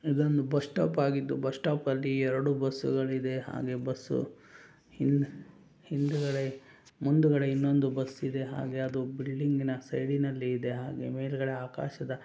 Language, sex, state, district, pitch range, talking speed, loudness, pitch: Kannada, male, Karnataka, Chamarajanagar, 130-145 Hz, 120 wpm, -31 LUFS, 135 Hz